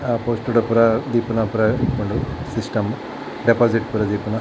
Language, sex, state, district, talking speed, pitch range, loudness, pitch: Tulu, male, Karnataka, Dakshina Kannada, 135 wpm, 110-120 Hz, -20 LUFS, 115 Hz